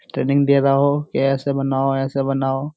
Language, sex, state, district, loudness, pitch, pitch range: Hindi, male, Uttar Pradesh, Jyotiba Phule Nagar, -19 LUFS, 135 Hz, 135-140 Hz